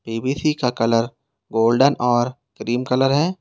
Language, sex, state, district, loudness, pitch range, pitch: Hindi, male, Uttar Pradesh, Lalitpur, -19 LUFS, 115-140 Hz, 125 Hz